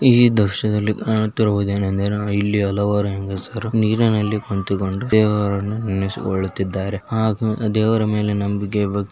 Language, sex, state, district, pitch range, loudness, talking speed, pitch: Kannada, male, Karnataka, Belgaum, 100-110 Hz, -20 LUFS, 105 wpm, 105 Hz